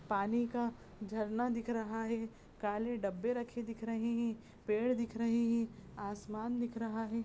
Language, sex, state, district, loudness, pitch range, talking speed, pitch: Hindi, female, Goa, North and South Goa, -38 LUFS, 215-235 Hz, 165 wpm, 230 Hz